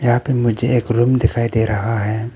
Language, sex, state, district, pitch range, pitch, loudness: Hindi, male, Arunachal Pradesh, Papum Pare, 110-120 Hz, 115 Hz, -17 LUFS